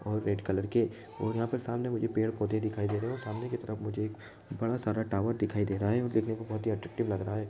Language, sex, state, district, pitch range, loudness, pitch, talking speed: Hindi, male, Chhattisgarh, Bilaspur, 105-115 Hz, -33 LUFS, 110 Hz, 265 wpm